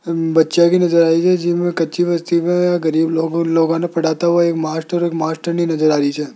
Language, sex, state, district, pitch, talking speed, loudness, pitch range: Hindi, male, Rajasthan, Jaipur, 165 Hz, 205 wpm, -16 LUFS, 160-175 Hz